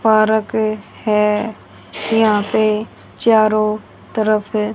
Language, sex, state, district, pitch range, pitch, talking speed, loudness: Hindi, female, Haryana, Rohtak, 210-220 Hz, 215 Hz, 75 wpm, -17 LUFS